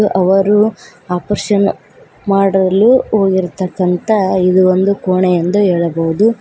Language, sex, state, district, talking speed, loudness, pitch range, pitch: Kannada, female, Karnataka, Koppal, 85 wpm, -13 LUFS, 185-205 Hz, 190 Hz